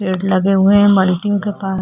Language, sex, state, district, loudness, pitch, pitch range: Hindi, female, Chhattisgarh, Kabirdham, -14 LUFS, 195 Hz, 185-205 Hz